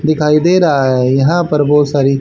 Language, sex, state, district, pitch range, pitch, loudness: Hindi, male, Haryana, Charkhi Dadri, 135-155 Hz, 145 Hz, -12 LUFS